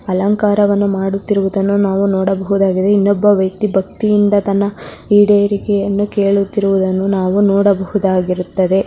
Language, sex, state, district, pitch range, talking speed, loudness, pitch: Kannada, female, Karnataka, Mysore, 190-205 Hz, 80 wpm, -14 LUFS, 200 Hz